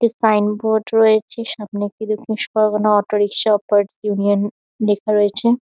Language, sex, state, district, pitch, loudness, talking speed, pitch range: Bengali, female, West Bengal, Kolkata, 210 Hz, -18 LUFS, 150 wpm, 205-220 Hz